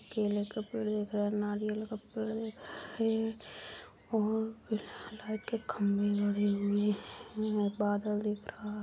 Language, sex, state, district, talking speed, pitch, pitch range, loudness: Hindi, female, Chhattisgarh, Kabirdham, 135 wpm, 210 Hz, 205-220 Hz, -34 LUFS